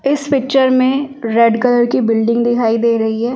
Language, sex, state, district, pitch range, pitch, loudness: Hindi, female, Delhi, New Delhi, 230-265 Hz, 240 Hz, -14 LUFS